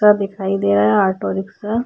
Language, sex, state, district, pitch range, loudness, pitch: Hindi, female, Uttarakhand, Tehri Garhwal, 190-210 Hz, -17 LUFS, 195 Hz